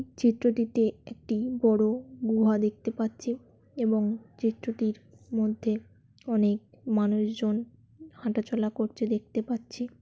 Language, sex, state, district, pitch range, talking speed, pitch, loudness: Bengali, female, West Bengal, Jalpaiguri, 215-235 Hz, 90 wpm, 225 Hz, -29 LUFS